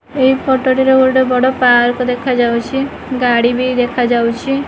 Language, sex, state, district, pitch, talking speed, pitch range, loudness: Odia, female, Odisha, Khordha, 255 Hz, 130 wpm, 245-265 Hz, -13 LUFS